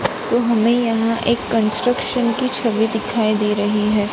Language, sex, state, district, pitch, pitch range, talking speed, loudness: Hindi, female, Gujarat, Gandhinagar, 225 Hz, 215-240 Hz, 160 wpm, -17 LUFS